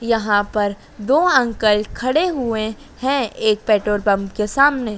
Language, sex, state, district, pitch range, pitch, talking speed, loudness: Hindi, female, Madhya Pradesh, Dhar, 210-260 Hz, 220 Hz, 145 wpm, -18 LUFS